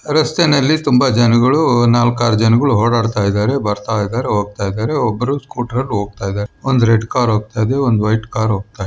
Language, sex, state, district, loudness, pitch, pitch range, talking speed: Kannada, male, Karnataka, Mysore, -15 LUFS, 115 Hz, 105-125 Hz, 170 wpm